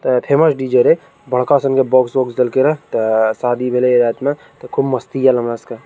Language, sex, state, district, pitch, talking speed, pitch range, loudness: Maithili, male, Bihar, Araria, 130 Hz, 245 wpm, 125-135 Hz, -15 LUFS